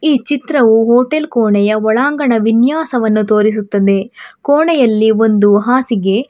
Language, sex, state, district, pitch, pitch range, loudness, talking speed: Kannada, female, Karnataka, Bangalore, 225 Hz, 215-270 Hz, -12 LUFS, 95 wpm